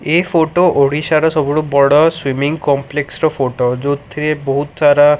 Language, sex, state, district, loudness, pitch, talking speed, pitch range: Odia, male, Odisha, Khordha, -14 LUFS, 150 Hz, 150 wpm, 140-155 Hz